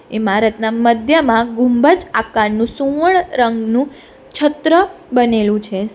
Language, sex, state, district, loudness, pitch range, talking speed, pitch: Gujarati, female, Gujarat, Valsad, -15 LUFS, 225-295 Hz, 110 wpm, 235 Hz